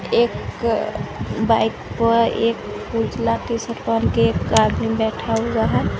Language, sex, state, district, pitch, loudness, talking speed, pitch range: Hindi, female, Jharkhand, Garhwa, 225 Hz, -20 LUFS, 140 wpm, 215-230 Hz